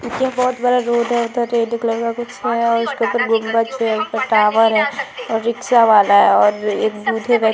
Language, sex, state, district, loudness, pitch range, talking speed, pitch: Hindi, female, Bihar, Vaishali, -16 LUFS, 225-240 Hz, 240 wpm, 230 Hz